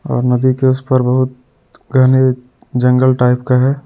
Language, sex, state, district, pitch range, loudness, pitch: Hindi, male, Jharkhand, Deoghar, 125-130 Hz, -13 LUFS, 130 Hz